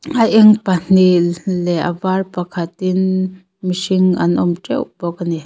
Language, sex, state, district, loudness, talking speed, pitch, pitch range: Mizo, female, Mizoram, Aizawl, -16 LUFS, 145 wpm, 185 Hz, 175-190 Hz